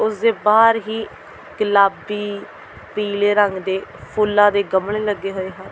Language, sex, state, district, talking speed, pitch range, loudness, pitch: Punjabi, female, Delhi, New Delhi, 145 wpm, 195-215 Hz, -18 LUFS, 205 Hz